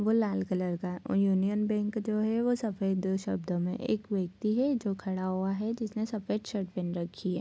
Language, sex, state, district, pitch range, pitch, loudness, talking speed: Hindi, female, Bihar, Bhagalpur, 185-215 Hz, 200 Hz, -31 LUFS, 220 wpm